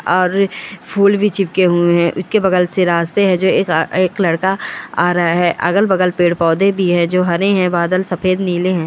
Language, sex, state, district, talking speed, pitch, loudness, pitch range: Hindi, female, Bihar, Purnia, 210 wpm, 185 Hz, -15 LUFS, 175-195 Hz